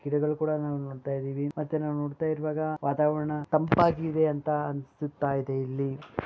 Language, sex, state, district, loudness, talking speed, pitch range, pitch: Kannada, male, Karnataka, Bellary, -29 LUFS, 135 wpm, 140-155 Hz, 150 Hz